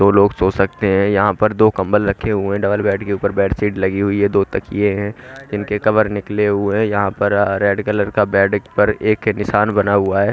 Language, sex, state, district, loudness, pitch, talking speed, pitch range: Hindi, male, Haryana, Rohtak, -16 LUFS, 100 Hz, 245 wpm, 100-105 Hz